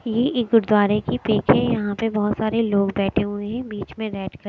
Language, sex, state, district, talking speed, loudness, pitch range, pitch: Hindi, female, Maharashtra, Mumbai Suburban, 240 wpm, -21 LUFS, 205-225 Hz, 215 Hz